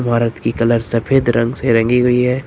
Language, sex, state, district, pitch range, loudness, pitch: Hindi, male, Uttar Pradesh, Lucknow, 115-125 Hz, -15 LUFS, 120 Hz